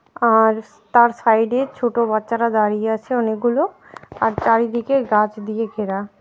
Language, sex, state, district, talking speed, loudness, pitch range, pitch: Bengali, female, West Bengal, Alipurduar, 135 wpm, -19 LUFS, 215-240 Hz, 230 Hz